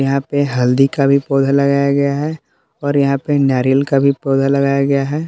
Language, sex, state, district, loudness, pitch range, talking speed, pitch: Hindi, male, Jharkhand, Palamu, -15 LUFS, 135-140 Hz, 215 wpm, 140 Hz